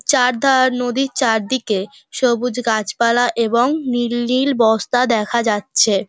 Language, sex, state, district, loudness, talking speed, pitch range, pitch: Bengali, female, West Bengal, Dakshin Dinajpur, -17 LUFS, 110 wpm, 225-255 Hz, 240 Hz